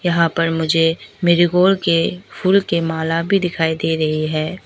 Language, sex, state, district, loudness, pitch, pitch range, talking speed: Hindi, female, Arunachal Pradesh, Lower Dibang Valley, -17 LUFS, 165 Hz, 160-180 Hz, 180 wpm